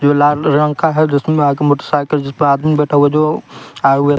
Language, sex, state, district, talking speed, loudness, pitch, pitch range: Hindi, male, Bihar, West Champaran, 245 wpm, -14 LUFS, 145 Hz, 145-150 Hz